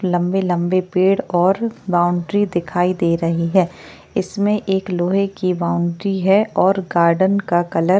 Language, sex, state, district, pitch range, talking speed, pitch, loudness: Hindi, female, Maharashtra, Chandrapur, 175-195 Hz, 150 wpm, 185 Hz, -18 LUFS